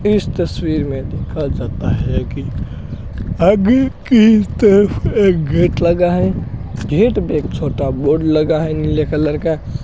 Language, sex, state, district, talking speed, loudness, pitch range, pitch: Hindi, male, Rajasthan, Bikaner, 145 wpm, -15 LUFS, 150-200 Hz, 160 Hz